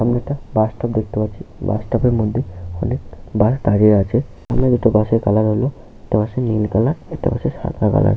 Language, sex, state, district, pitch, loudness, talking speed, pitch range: Bengali, male, West Bengal, Paschim Medinipur, 110 Hz, -18 LUFS, 200 wpm, 105-125 Hz